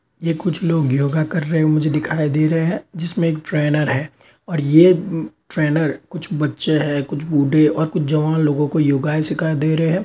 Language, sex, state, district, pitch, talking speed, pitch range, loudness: Hindi, male, Uttar Pradesh, Varanasi, 155 Hz, 205 wpm, 150-165 Hz, -18 LUFS